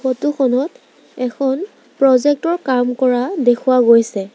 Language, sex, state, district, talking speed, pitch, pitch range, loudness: Assamese, female, Assam, Sonitpur, 125 wpm, 260 Hz, 245-285 Hz, -16 LUFS